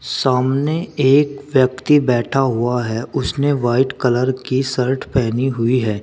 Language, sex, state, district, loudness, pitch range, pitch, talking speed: Hindi, male, Uttar Pradesh, Shamli, -17 LUFS, 125-135 Hz, 130 Hz, 140 wpm